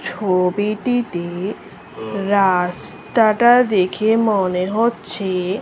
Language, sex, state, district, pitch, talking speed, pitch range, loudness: Bengali, female, West Bengal, Malda, 200 Hz, 55 wpm, 185-225 Hz, -18 LUFS